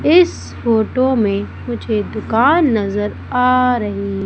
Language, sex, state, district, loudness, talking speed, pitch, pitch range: Hindi, female, Madhya Pradesh, Umaria, -16 LUFS, 115 wpm, 230 Hz, 205-255 Hz